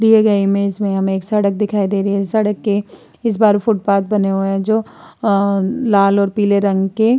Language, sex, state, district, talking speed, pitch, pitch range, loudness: Hindi, female, Uttar Pradesh, Muzaffarnagar, 225 wpm, 200 Hz, 195-215 Hz, -16 LUFS